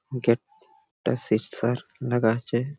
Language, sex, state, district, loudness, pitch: Bengali, male, West Bengal, Jhargram, -26 LUFS, 125 Hz